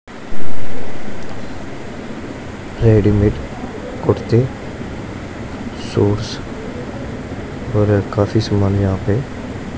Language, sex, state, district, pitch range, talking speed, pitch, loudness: Hindi, male, Punjab, Pathankot, 100-115 Hz, 55 wpm, 105 Hz, -20 LUFS